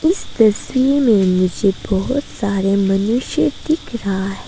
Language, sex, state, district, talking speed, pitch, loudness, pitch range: Hindi, female, Arunachal Pradesh, Papum Pare, 135 wpm, 210 Hz, -17 LUFS, 195-260 Hz